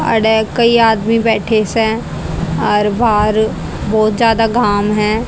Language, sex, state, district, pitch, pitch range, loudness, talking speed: Hindi, female, Haryana, Rohtak, 220 Hz, 215-230 Hz, -14 LUFS, 125 wpm